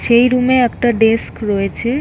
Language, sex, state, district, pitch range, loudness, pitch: Bengali, female, West Bengal, North 24 Parganas, 225-250 Hz, -14 LUFS, 240 Hz